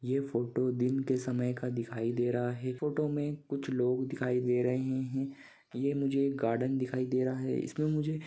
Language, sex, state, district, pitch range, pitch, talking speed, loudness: Hindi, male, Maharashtra, Sindhudurg, 125-140 Hz, 130 Hz, 195 wpm, -33 LUFS